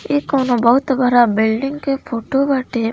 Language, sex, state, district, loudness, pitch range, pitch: Hindi, female, Bihar, East Champaran, -16 LUFS, 235-275 Hz, 255 Hz